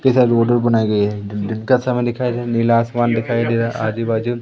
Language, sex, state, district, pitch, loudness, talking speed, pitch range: Hindi, female, Madhya Pradesh, Umaria, 115 Hz, -17 LUFS, 300 wpm, 110-120 Hz